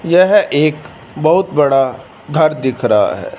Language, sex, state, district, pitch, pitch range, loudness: Hindi, male, Punjab, Fazilka, 150 Hz, 135-175 Hz, -13 LUFS